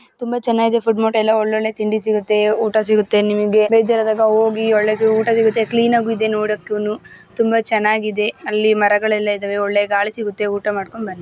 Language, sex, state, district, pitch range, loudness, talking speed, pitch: Kannada, female, Karnataka, Gulbarga, 210-225 Hz, -17 LUFS, 170 wpm, 215 Hz